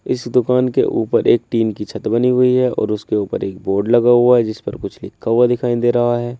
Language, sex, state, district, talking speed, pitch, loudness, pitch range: Hindi, male, Uttar Pradesh, Saharanpur, 260 wpm, 120 Hz, -16 LUFS, 110-125 Hz